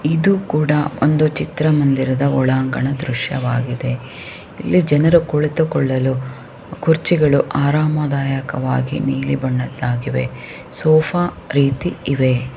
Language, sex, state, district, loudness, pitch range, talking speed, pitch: Kannada, female, Karnataka, Shimoga, -17 LUFS, 130-155 Hz, 90 wpm, 140 Hz